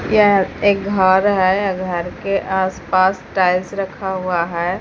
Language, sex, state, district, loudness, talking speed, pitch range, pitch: Hindi, female, Bihar, Katihar, -17 LUFS, 150 wpm, 185-195 Hz, 190 Hz